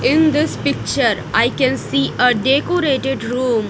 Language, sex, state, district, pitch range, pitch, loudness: English, female, Punjab, Kapurthala, 230-285 Hz, 260 Hz, -17 LUFS